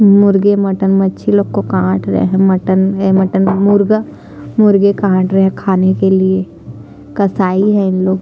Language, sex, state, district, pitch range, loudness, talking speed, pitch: Hindi, female, Chhattisgarh, Sukma, 185-200 Hz, -12 LUFS, 170 wpm, 190 Hz